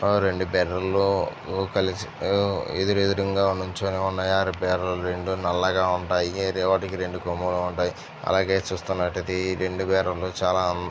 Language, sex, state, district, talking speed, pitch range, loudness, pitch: Telugu, male, Andhra Pradesh, Chittoor, 130 wpm, 90-95 Hz, -25 LUFS, 95 Hz